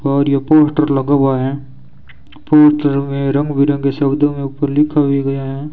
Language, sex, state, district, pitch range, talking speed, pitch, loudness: Hindi, male, Rajasthan, Bikaner, 135-145 Hz, 180 wpm, 140 Hz, -14 LUFS